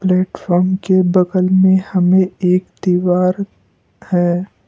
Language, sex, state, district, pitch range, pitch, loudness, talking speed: Hindi, male, Assam, Kamrup Metropolitan, 180-190 Hz, 185 Hz, -15 LUFS, 100 wpm